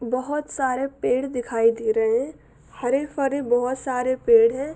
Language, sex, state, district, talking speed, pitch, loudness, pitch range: Hindi, female, Jharkhand, Sahebganj, 165 wpm, 270 Hz, -22 LUFS, 250-295 Hz